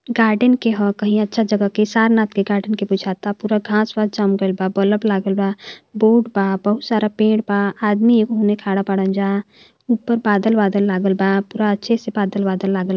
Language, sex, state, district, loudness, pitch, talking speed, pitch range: Hindi, female, Uttar Pradesh, Varanasi, -18 LUFS, 210 Hz, 210 wpm, 195-220 Hz